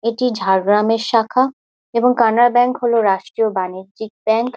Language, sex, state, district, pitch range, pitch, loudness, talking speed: Bengali, female, West Bengal, Jhargram, 210-245 Hz, 225 Hz, -16 LUFS, 145 wpm